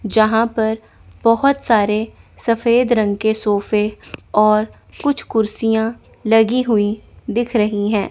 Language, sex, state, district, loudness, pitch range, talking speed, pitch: Hindi, female, Chandigarh, Chandigarh, -17 LUFS, 210-230 Hz, 120 wpm, 220 Hz